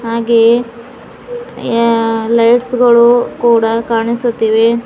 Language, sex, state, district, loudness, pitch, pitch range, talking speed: Kannada, female, Karnataka, Bidar, -11 LUFS, 235 Hz, 230-240 Hz, 75 wpm